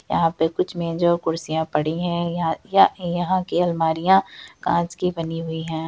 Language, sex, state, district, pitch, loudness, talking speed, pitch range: Hindi, female, Bihar, Madhepura, 170 Hz, -22 LUFS, 185 wpm, 160-175 Hz